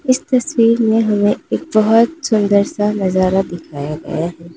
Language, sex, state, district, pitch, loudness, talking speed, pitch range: Hindi, female, Uttar Pradesh, Lalitpur, 205 Hz, -15 LUFS, 155 wpm, 175-230 Hz